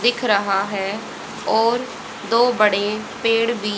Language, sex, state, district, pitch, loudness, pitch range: Hindi, female, Haryana, Rohtak, 220 Hz, -19 LUFS, 205-235 Hz